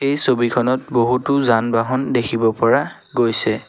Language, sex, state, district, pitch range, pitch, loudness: Assamese, male, Assam, Sonitpur, 115-130 Hz, 120 Hz, -17 LUFS